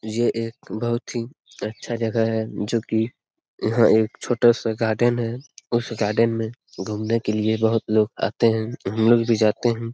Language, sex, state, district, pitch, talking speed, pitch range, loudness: Hindi, male, Bihar, Lakhisarai, 115 Hz, 175 wpm, 110-120 Hz, -22 LUFS